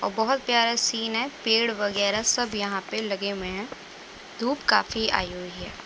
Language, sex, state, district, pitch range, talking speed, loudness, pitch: Hindi, female, Uttar Pradesh, Budaun, 200-235 Hz, 205 wpm, -25 LUFS, 220 Hz